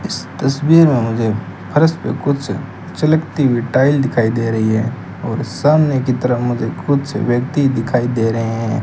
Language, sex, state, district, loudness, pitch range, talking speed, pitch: Hindi, male, Rajasthan, Bikaner, -16 LUFS, 115-140 Hz, 170 wpm, 125 Hz